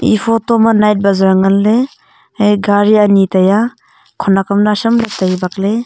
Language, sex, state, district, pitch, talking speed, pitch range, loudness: Wancho, female, Arunachal Pradesh, Longding, 205 Hz, 165 wpm, 195-225 Hz, -12 LUFS